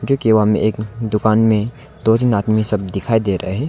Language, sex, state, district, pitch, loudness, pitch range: Hindi, male, Arunachal Pradesh, Longding, 110 Hz, -17 LUFS, 105-115 Hz